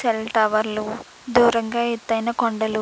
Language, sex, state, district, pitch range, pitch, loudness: Telugu, female, Andhra Pradesh, Krishna, 220-235 Hz, 225 Hz, -21 LUFS